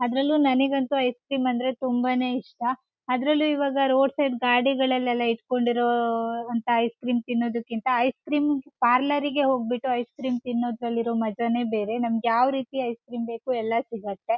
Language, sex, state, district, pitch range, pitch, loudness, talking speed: Kannada, female, Karnataka, Shimoga, 235-265 Hz, 245 Hz, -25 LUFS, 150 wpm